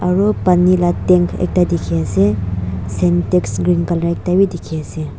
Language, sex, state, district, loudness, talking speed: Nagamese, female, Nagaland, Dimapur, -16 LUFS, 140 wpm